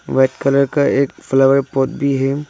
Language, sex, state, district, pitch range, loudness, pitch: Hindi, male, Arunachal Pradesh, Lower Dibang Valley, 135-140 Hz, -16 LUFS, 140 Hz